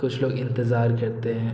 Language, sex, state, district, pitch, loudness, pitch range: Hindi, male, Bihar, Araria, 120 Hz, -24 LUFS, 115-125 Hz